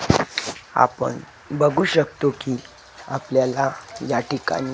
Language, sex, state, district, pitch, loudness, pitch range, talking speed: Marathi, male, Maharashtra, Gondia, 135 Hz, -22 LUFS, 130-150 Hz, 90 wpm